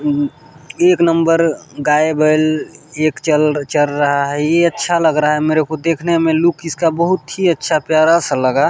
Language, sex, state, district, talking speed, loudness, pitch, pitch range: Hindi, male, Chhattisgarh, Balrampur, 180 wpm, -15 LUFS, 155 Hz, 150-165 Hz